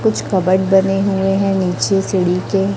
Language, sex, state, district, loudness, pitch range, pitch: Hindi, female, Chhattisgarh, Raipur, -16 LUFS, 190-195 Hz, 195 Hz